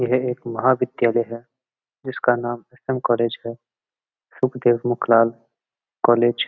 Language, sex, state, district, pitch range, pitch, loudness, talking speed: Marwari, male, Rajasthan, Nagaur, 115-125 Hz, 120 Hz, -21 LUFS, 140 wpm